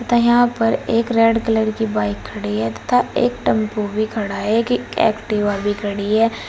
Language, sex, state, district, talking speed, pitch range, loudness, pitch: Hindi, female, Uttar Pradesh, Saharanpur, 195 wpm, 205-230 Hz, -18 LUFS, 220 Hz